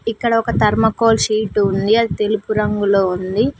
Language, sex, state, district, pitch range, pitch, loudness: Telugu, female, Telangana, Mahabubabad, 205-225 Hz, 215 Hz, -16 LUFS